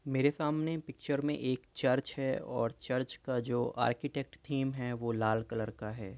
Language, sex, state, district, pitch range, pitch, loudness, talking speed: Hindi, male, Uttar Pradesh, Jyotiba Phule Nagar, 120-140 Hz, 130 Hz, -35 LUFS, 195 wpm